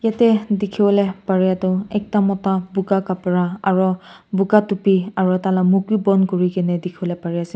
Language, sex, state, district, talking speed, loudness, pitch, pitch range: Nagamese, male, Nagaland, Kohima, 160 wpm, -18 LUFS, 190 Hz, 185-200 Hz